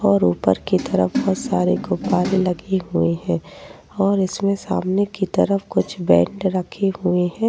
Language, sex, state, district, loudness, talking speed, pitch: Hindi, female, Uttar Pradesh, Jyotiba Phule Nagar, -20 LUFS, 160 wpm, 180 Hz